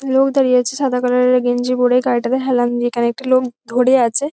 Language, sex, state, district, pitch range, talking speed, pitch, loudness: Bengali, female, West Bengal, North 24 Parganas, 245-260 Hz, 220 wpm, 250 Hz, -16 LUFS